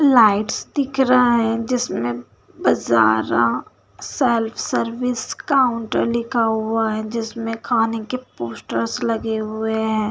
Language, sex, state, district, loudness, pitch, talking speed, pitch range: Hindi, female, Bihar, Saharsa, -20 LUFS, 225 Hz, 115 wpm, 215-245 Hz